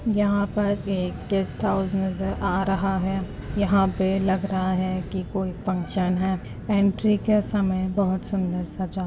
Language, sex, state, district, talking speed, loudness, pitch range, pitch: Hindi, female, Uttar Pradesh, Muzaffarnagar, 160 wpm, -24 LUFS, 185-200 Hz, 190 Hz